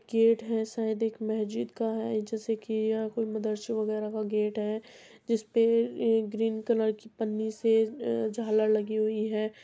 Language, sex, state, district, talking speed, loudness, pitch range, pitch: Hindi, female, Uttar Pradesh, Muzaffarnagar, 160 wpm, -29 LUFS, 215-225 Hz, 220 Hz